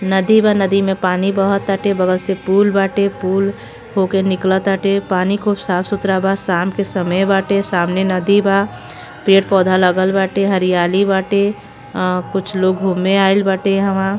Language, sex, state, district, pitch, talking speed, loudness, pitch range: Bhojpuri, female, Uttar Pradesh, Gorakhpur, 195 Hz, 180 wpm, -15 LUFS, 185-200 Hz